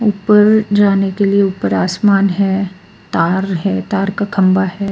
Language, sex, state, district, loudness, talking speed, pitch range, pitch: Hindi, female, Bihar, Patna, -14 LUFS, 160 wpm, 190-200 Hz, 195 Hz